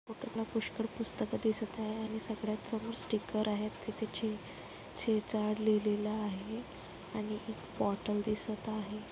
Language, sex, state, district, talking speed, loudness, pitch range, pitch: Marathi, female, Maharashtra, Dhule, 145 wpm, -34 LUFS, 210-220 Hz, 215 Hz